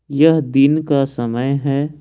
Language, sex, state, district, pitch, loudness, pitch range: Hindi, male, Jharkhand, Ranchi, 140 Hz, -16 LUFS, 135-150 Hz